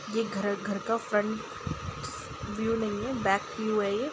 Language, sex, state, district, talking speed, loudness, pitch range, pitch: Hindi, female, Bihar, Gopalganj, 190 wpm, -31 LUFS, 205-225 Hz, 215 Hz